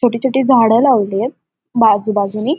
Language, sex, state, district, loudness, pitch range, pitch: Marathi, female, Maharashtra, Dhule, -14 LUFS, 215-265 Hz, 235 Hz